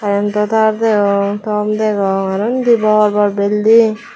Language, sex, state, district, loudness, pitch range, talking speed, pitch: Chakma, female, Tripura, Dhalai, -14 LUFS, 205-220 Hz, 145 wpm, 210 Hz